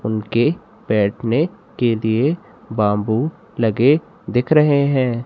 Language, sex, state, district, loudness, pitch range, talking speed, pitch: Hindi, male, Madhya Pradesh, Katni, -18 LUFS, 110-145 Hz, 105 wpm, 120 Hz